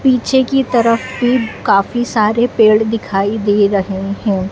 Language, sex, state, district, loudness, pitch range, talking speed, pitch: Hindi, female, Madhya Pradesh, Dhar, -14 LUFS, 200-245 Hz, 145 wpm, 220 Hz